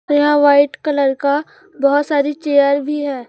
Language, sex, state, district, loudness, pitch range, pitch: Hindi, female, Chhattisgarh, Raipur, -15 LUFS, 280-295 Hz, 290 Hz